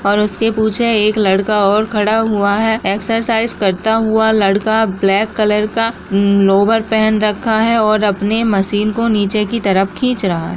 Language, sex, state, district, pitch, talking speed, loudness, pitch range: Hindi, female, Bihar, Bhagalpur, 215 Hz, 175 wpm, -14 LUFS, 200-225 Hz